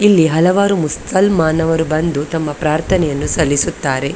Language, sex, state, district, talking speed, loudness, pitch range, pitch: Kannada, female, Karnataka, Dakshina Kannada, 115 wpm, -15 LUFS, 150-175 Hz, 160 Hz